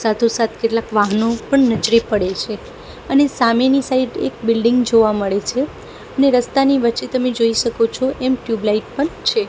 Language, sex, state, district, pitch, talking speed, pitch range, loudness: Gujarati, female, Gujarat, Gandhinagar, 235 Hz, 170 wpm, 225-265 Hz, -17 LUFS